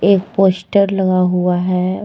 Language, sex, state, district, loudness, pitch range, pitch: Hindi, female, Jharkhand, Deoghar, -15 LUFS, 180-195 Hz, 190 Hz